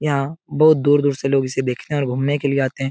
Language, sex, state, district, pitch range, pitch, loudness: Hindi, male, Bihar, Supaul, 135-145 Hz, 140 Hz, -19 LUFS